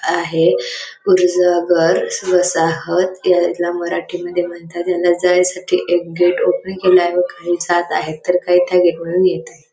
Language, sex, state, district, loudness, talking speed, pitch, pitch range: Marathi, female, Maharashtra, Chandrapur, -16 LUFS, 150 wpm, 175 Hz, 175-180 Hz